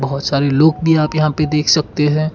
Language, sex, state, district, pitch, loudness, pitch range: Hindi, male, Karnataka, Bangalore, 150 Hz, -15 LUFS, 145-155 Hz